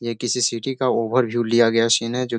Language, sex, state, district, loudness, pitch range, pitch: Hindi, male, Bihar, Sitamarhi, -20 LUFS, 115-125 Hz, 120 Hz